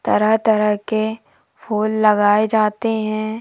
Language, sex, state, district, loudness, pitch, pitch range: Hindi, female, Madhya Pradesh, Umaria, -18 LUFS, 215 Hz, 210-220 Hz